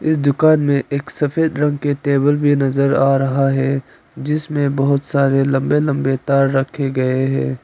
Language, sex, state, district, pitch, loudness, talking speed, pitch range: Hindi, female, Arunachal Pradesh, Papum Pare, 140 Hz, -17 LUFS, 175 wpm, 135-145 Hz